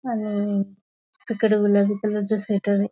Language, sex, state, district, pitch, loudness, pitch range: Marathi, female, Maharashtra, Aurangabad, 205 Hz, -23 LUFS, 200-215 Hz